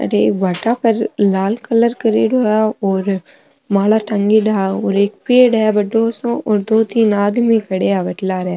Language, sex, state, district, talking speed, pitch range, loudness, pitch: Marwari, female, Rajasthan, Nagaur, 175 wpm, 195-230 Hz, -15 LUFS, 215 Hz